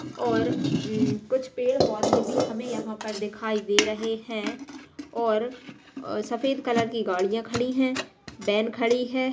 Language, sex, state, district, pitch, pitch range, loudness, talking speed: Hindi, female, Bihar, Purnia, 235 Hz, 220-260 Hz, -26 LUFS, 155 wpm